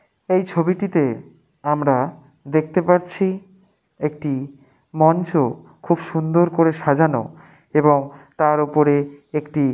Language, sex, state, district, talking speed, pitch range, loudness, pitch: Bengali, male, West Bengal, Dakshin Dinajpur, 90 wpm, 145-170 Hz, -19 LUFS, 155 Hz